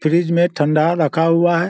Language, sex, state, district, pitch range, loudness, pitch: Hindi, male, Bihar, Sitamarhi, 155-170 Hz, -16 LUFS, 165 Hz